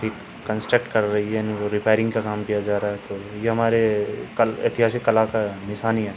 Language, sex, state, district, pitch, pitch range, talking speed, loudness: Hindi, male, Uttar Pradesh, Hamirpur, 110 Hz, 105-110 Hz, 205 wpm, -22 LUFS